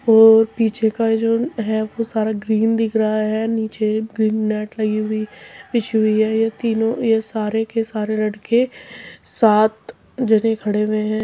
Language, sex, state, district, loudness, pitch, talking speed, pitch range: Hindi, female, Uttar Pradesh, Muzaffarnagar, -18 LUFS, 220 Hz, 165 wpm, 215-225 Hz